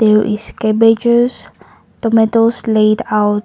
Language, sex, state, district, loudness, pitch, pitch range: English, female, Nagaland, Kohima, -13 LUFS, 220 Hz, 215-230 Hz